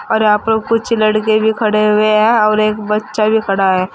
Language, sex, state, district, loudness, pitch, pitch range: Hindi, female, Uttar Pradesh, Saharanpur, -13 LUFS, 215 Hz, 210-220 Hz